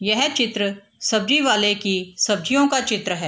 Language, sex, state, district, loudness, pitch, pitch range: Hindi, female, Bihar, Gopalganj, -19 LUFS, 210 Hz, 200-260 Hz